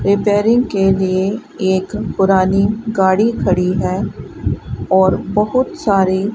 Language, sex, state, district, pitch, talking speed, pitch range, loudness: Hindi, female, Rajasthan, Bikaner, 195 Hz, 105 wpm, 190-210 Hz, -16 LUFS